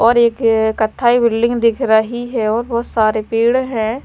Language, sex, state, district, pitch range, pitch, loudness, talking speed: Hindi, female, Himachal Pradesh, Shimla, 220-240 Hz, 230 Hz, -15 LUFS, 180 wpm